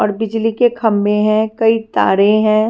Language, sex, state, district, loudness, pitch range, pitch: Hindi, female, Punjab, Fazilka, -14 LUFS, 215-225 Hz, 220 Hz